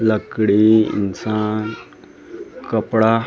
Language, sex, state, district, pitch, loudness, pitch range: Chhattisgarhi, male, Chhattisgarh, Rajnandgaon, 110 Hz, -18 LUFS, 105-110 Hz